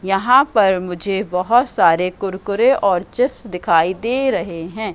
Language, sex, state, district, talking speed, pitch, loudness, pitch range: Hindi, female, Madhya Pradesh, Katni, 145 wpm, 195 Hz, -17 LUFS, 180-240 Hz